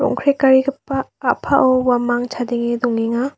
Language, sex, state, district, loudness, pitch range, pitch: Garo, female, Meghalaya, West Garo Hills, -17 LUFS, 240-270 Hz, 255 Hz